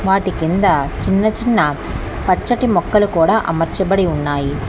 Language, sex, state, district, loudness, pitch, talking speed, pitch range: Telugu, female, Telangana, Hyderabad, -16 LUFS, 190 Hz, 115 wpm, 165-210 Hz